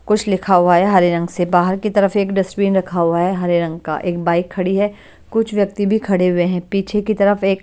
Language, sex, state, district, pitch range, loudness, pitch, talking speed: Hindi, female, Haryana, Jhajjar, 175-200 Hz, -17 LUFS, 190 Hz, 250 wpm